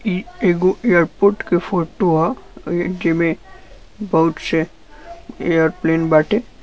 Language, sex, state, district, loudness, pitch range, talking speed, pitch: Bhojpuri, male, Uttar Pradesh, Gorakhpur, -18 LUFS, 165-195 Hz, 100 wpm, 175 Hz